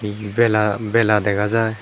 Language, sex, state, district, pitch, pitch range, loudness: Chakma, male, Tripura, Dhalai, 105 Hz, 105-115 Hz, -18 LUFS